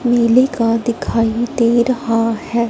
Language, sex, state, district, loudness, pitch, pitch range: Hindi, female, Punjab, Fazilka, -16 LUFS, 235 Hz, 230-240 Hz